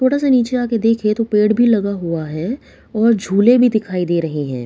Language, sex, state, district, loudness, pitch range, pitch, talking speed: Hindi, female, Bihar, Katihar, -16 LUFS, 180-240 Hz, 220 Hz, 245 wpm